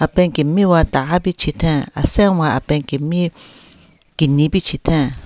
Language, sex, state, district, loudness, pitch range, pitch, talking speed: Rengma, female, Nagaland, Kohima, -16 LUFS, 145-175 Hz, 155 Hz, 100 wpm